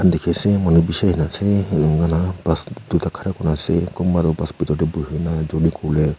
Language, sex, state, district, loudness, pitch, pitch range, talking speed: Nagamese, male, Nagaland, Kohima, -19 LUFS, 85 Hz, 80-90 Hz, 205 wpm